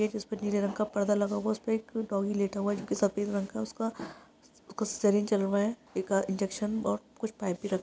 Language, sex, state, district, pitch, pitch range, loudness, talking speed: Hindi, female, Maharashtra, Sindhudurg, 205 Hz, 200-215 Hz, -31 LUFS, 230 wpm